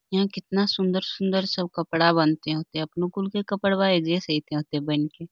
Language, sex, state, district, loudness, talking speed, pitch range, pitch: Magahi, female, Bihar, Lakhisarai, -24 LUFS, 90 wpm, 155-190 Hz, 175 Hz